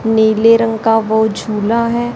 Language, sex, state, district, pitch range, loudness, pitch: Hindi, female, Haryana, Charkhi Dadri, 220-230 Hz, -13 LUFS, 225 Hz